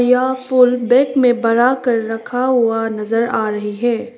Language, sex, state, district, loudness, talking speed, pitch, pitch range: Hindi, female, Arunachal Pradesh, Papum Pare, -16 LUFS, 145 wpm, 240 Hz, 225-250 Hz